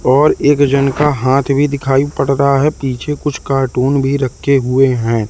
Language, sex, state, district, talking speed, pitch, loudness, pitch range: Hindi, male, Madhya Pradesh, Katni, 195 wpm, 135 Hz, -14 LUFS, 135-140 Hz